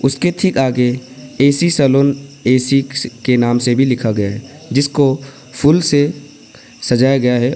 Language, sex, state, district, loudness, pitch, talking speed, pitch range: Hindi, male, Arunachal Pradesh, Papum Pare, -15 LUFS, 135 Hz, 150 wpm, 125-140 Hz